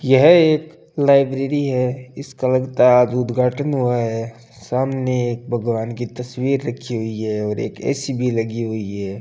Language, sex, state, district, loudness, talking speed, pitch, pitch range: Hindi, male, Rajasthan, Bikaner, -19 LUFS, 170 wpm, 125 Hz, 115-135 Hz